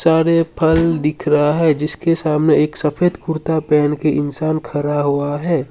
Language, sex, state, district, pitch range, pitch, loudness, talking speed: Hindi, male, Assam, Sonitpur, 150-165 Hz, 155 Hz, -17 LUFS, 170 wpm